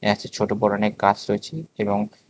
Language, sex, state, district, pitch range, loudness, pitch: Bengali, male, Tripura, West Tripura, 100-105 Hz, -23 LUFS, 105 Hz